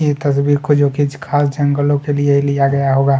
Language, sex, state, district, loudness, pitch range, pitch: Hindi, male, Chhattisgarh, Kabirdham, -15 LUFS, 140-145 Hz, 145 Hz